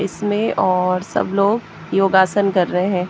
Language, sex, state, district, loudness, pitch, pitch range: Hindi, female, Haryana, Jhajjar, -18 LUFS, 190 Hz, 185-200 Hz